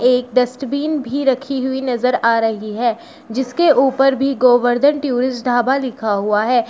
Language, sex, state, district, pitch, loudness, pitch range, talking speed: Hindi, female, Uttar Pradesh, Shamli, 250 Hz, -17 LUFS, 245-270 Hz, 160 wpm